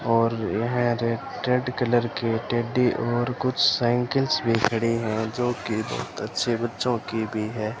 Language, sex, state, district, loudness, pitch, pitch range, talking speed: Hindi, male, Rajasthan, Bikaner, -24 LUFS, 120 Hz, 115-125 Hz, 160 wpm